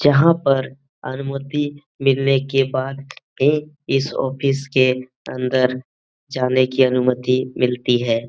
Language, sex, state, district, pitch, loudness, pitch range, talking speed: Hindi, male, Bihar, Jamui, 135 Hz, -19 LUFS, 130-140 Hz, 115 wpm